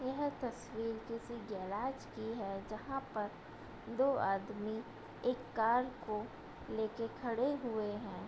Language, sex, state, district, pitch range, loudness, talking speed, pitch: Hindi, female, Uttar Pradesh, Budaun, 215-250 Hz, -39 LUFS, 130 wpm, 230 Hz